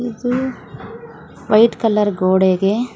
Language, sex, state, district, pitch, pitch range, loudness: Kannada, female, Karnataka, Bangalore, 220 Hz, 195-240 Hz, -16 LUFS